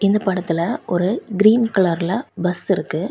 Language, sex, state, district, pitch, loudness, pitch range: Tamil, female, Tamil Nadu, Kanyakumari, 190 Hz, -19 LUFS, 175-205 Hz